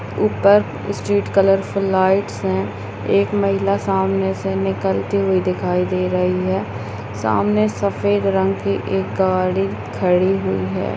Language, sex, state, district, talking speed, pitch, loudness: Hindi, female, Bihar, Madhepura, 130 wpm, 100 Hz, -19 LUFS